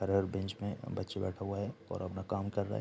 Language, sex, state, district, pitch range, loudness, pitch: Hindi, male, Bihar, Saharsa, 95-105 Hz, -38 LUFS, 100 Hz